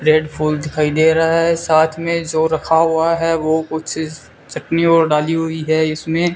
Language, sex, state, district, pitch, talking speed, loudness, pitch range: Hindi, male, Rajasthan, Bikaner, 160 Hz, 190 wpm, -16 LUFS, 155-165 Hz